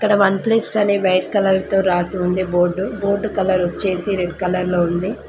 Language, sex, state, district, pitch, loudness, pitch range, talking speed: Telugu, female, Telangana, Mahabubabad, 190 Hz, -18 LUFS, 180-200 Hz, 195 wpm